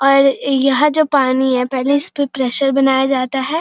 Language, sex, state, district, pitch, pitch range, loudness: Hindi, female, Uttarakhand, Uttarkashi, 275 Hz, 265-285 Hz, -15 LUFS